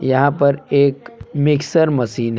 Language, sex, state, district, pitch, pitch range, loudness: Hindi, male, Jharkhand, Palamu, 140 Hz, 130-145 Hz, -16 LUFS